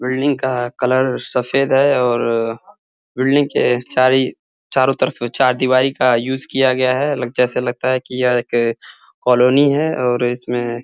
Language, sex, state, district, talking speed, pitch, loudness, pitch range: Hindi, male, Uttar Pradesh, Ghazipur, 160 wpm, 125 Hz, -16 LUFS, 120-130 Hz